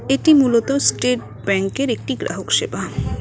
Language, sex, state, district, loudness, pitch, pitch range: Bengali, female, West Bengal, Cooch Behar, -18 LUFS, 250 Hz, 230-275 Hz